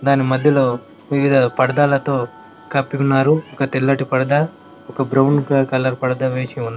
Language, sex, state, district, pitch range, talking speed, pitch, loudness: Telugu, male, Telangana, Mahabubabad, 130-140 Hz, 160 wpm, 135 Hz, -17 LUFS